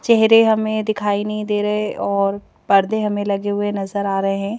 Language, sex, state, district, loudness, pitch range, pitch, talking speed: Hindi, female, Madhya Pradesh, Bhopal, -18 LUFS, 200-215 Hz, 205 Hz, 195 wpm